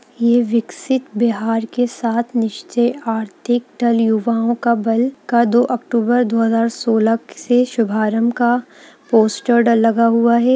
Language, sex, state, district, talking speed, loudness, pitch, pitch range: Hindi, female, Bihar, Gaya, 130 wpm, -17 LUFS, 235 Hz, 225-240 Hz